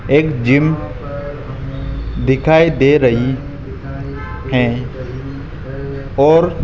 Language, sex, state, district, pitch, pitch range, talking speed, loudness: Hindi, male, Rajasthan, Jaipur, 135 Hz, 125-145 Hz, 65 wpm, -16 LUFS